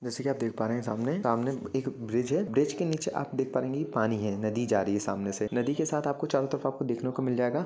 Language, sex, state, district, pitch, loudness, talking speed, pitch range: Hindi, male, Jharkhand, Jamtara, 130 Hz, -30 LUFS, 280 wpm, 115-140 Hz